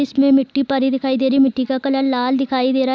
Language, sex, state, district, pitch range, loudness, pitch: Hindi, female, Bihar, Gopalganj, 260-270 Hz, -17 LUFS, 265 Hz